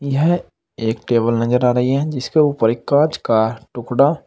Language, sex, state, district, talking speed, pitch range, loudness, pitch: Hindi, male, Uttar Pradesh, Saharanpur, 185 wpm, 115-145 Hz, -17 LUFS, 125 Hz